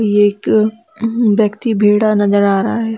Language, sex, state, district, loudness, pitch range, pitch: Hindi, female, Bihar, Darbhanga, -14 LUFS, 205-225 Hz, 215 Hz